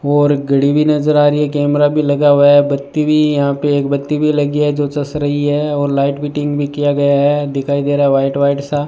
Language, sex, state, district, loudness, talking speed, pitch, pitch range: Hindi, male, Rajasthan, Bikaner, -14 LUFS, 265 wpm, 145 Hz, 140-145 Hz